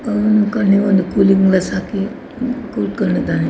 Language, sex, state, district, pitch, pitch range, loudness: Kannada, female, Karnataka, Dakshina Kannada, 205 Hz, 195-220 Hz, -16 LUFS